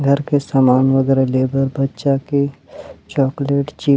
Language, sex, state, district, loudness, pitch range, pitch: Chhattisgarhi, male, Chhattisgarh, Rajnandgaon, -17 LUFS, 135-140 Hz, 135 Hz